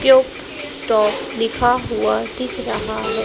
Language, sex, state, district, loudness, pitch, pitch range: Hindi, female, Maharashtra, Gondia, -17 LUFS, 225 Hz, 185-255 Hz